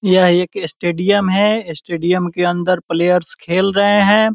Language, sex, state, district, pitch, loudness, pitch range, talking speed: Hindi, male, Bihar, Purnia, 180 Hz, -15 LUFS, 175-200 Hz, 165 wpm